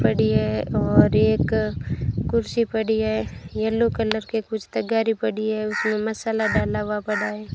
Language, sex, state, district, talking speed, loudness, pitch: Hindi, female, Rajasthan, Bikaner, 160 wpm, -23 LUFS, 215 Hz